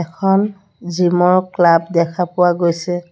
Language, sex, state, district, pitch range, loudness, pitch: Assamese, female, Assam, Sonitpur, 170-185 Hz, -15 LUFS, 175 Hz